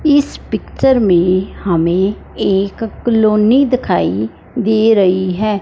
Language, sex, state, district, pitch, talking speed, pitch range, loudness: Hindi, female, Punjab, Fazilka, 205 Hz, 105 wpm, 185-225 Hz, -14 LUFS